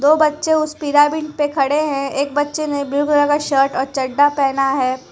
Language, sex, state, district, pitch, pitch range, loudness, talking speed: Hindi, female, Gujarat, Valsad, 290 Hz, 275-300 Hz, -17 LUFS, 210 wpm